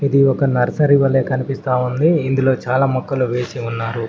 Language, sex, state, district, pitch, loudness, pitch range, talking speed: Telugu, male, Telangana, Mahabubabad, 130 Hz, -17 LUFS, 125-135 Hz, 160 wpm